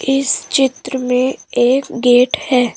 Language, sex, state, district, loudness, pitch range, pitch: Hindi, female, Uttar Pradesh, Shamli, -15 LUFS, 250-270 Hz, 260 Hz